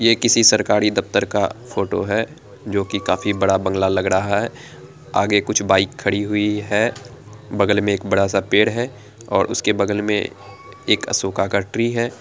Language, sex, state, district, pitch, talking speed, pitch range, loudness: Angika, female, Bihar, Araria, 105 Hz, 180 wpm, 100-105 Hz, -19 LUFS